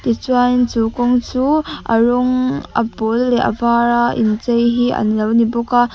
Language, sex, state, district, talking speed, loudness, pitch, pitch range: Mizo, female, Mizoram, Aizawl, 190 wpm, -16 LUFS, 240 Hz, 230-245 Hz